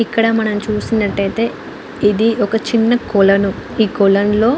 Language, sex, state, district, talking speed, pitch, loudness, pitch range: Telugu, female, Andhra Pradesh, Anantapur, 145 wpm, 215 Hz, -15 LUFS, 200-225 Hz